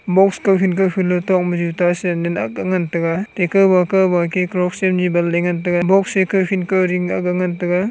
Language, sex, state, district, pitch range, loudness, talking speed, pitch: Wancho, male, Arunachal Pradesh, Longding, 175-190 Hz, -17 LUFS, 210 wpm, 180 Hz